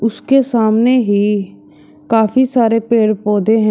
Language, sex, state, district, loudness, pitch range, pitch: Hindi, male, Uttar Pradesh, Shamli, -13 LUFS, 210-240 Hz, 225 Hz